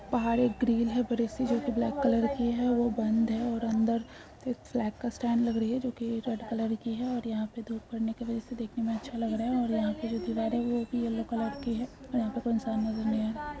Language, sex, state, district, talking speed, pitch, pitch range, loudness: Hindi, female, Uttarakhand, Tehri Garhwal, 265 wpm, 230 Hz, 225-240 Hz, -31 LUFS